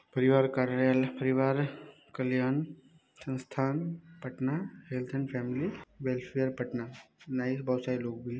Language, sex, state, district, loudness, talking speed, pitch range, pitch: Hindi, male, Bihar, Muzaffarpur, -32 LUFS, 120 wpm, 130-140 Hz, 130 Hz